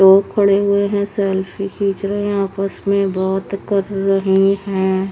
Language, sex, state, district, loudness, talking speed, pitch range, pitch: Hindi, female, Haryana, Charkhi Dadri, -17 LUFS, 175 wpm, 195-200 Hz, 195 Hz